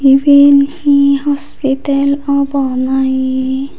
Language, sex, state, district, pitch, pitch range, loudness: Chakma, female, Tripura, Unakoti, 280 Hz, 265-280 Hz, -12 LUFS